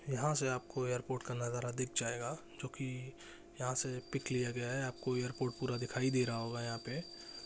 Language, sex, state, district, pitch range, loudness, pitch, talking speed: Hindi, male, Bihar, Jahanabad, 120-130 Hz, -38 LUFS, 125 Hz, 215 wpm